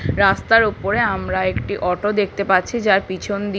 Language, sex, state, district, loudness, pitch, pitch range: Bengali, female, West Bengal, Paschim Medinipur, -18 LUFS, 195 Hz, 180-210 Hz